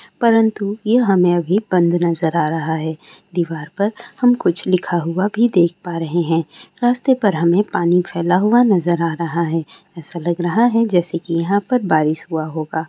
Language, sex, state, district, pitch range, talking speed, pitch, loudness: Maithili, female, Bihar, Sitamarhi, 165-205 Hz, 190 wpm, 175 Hz, -17 LUFS